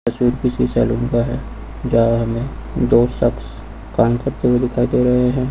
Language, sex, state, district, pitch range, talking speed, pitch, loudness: Hindi, male, Uttar Pradesh, Lucknow, 115-125 Hz, 175 wpm, 120 Hz, -18 LUFS